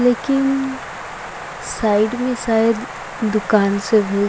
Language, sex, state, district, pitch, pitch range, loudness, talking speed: Sadri, female, Chhattisgarh, Jashpur, 225 Hz, 210-245 Hz, -18 LUFS, 100 wpm